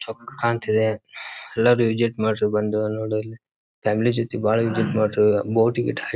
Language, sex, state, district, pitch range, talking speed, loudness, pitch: Kannada, male, Karnataka, Dharwad, 110-115 Hz, 95 wpm, -22 LUFS, 110 Hz